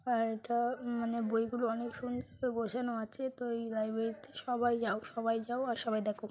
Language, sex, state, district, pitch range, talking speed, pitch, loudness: Bengali, female, West Bengal, Paschim Medinipur, 225-245 Hz, 190 wpm, 230 Hz, -36 LUFS